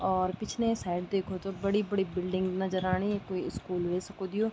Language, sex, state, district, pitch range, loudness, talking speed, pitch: Garhwali, female, Uttarakhand, Tehri Garhwal, 185-200 Hz, -32 LUFS, 185 wpm, 190 Hz